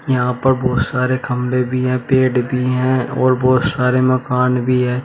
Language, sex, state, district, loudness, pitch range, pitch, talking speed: Hindi, male, Uttar Pradesh, Shamli, -16 LUFS, 125-130 Hz, 125 Hz, 190 wpm